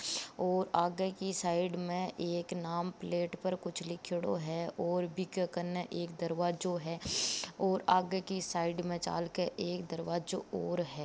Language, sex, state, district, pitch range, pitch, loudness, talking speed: Marwari, female, Rajasthan, Nagaur, 170-185 Hz, 175 Hz, -35 LUFS, 150 wpm